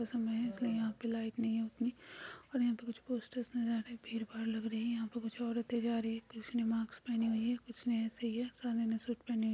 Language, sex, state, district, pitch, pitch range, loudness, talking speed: Hindi, female, Uttar Pradesh, Hamirpur, 230 Hz, 225-240 Hz, -38 LUFS, 285 wpm